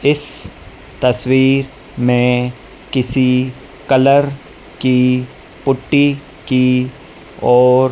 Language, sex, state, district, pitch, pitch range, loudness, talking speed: Hindi, male, Madhya Pradesh, Dhar, 130 Hz, 125-135 Hz, -15 LUFS, 70 wpm